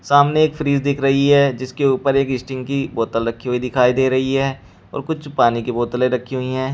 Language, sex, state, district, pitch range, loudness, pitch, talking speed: Hindi, male, Uttar Pradesh, Shamli, 125-140 Hz, -18 LUFS, 130 Hz, 230 wpm